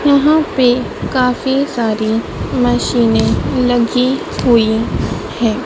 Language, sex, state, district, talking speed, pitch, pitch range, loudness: Hindi, female, Madhya Pradesh, Dhar, 85 wpm, 245 Hz, 230-260 Hz, -14 LUFS